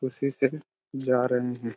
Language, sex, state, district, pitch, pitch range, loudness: Hindi, male, Jharkhand, Jamtara, 130 Hz, 125-135 Hz, -27 LUFS